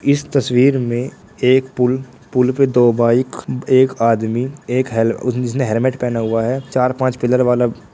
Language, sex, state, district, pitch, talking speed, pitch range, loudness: Hindi, male, Bihar, Purnia, 125 Hz, 160 wpm, 120-130 Hz, -16 LUFS